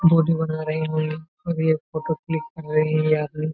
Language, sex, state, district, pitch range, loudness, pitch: Hindi, male, Jharkhand, Jamtara, 155-160 Hz, -23 LUFS, 155 Hz